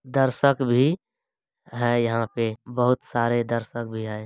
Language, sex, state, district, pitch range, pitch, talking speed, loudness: Maithili, male, Bihar, Supaul, 115-125 Hz, 120 Hz, 155 wpm, -24 LUFS